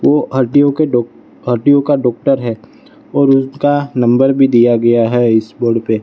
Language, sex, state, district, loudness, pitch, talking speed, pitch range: Hindi, male, Gujarat, Valsad, -13 LUFS, 125 Hz, 190 wpm, 120-140 Hz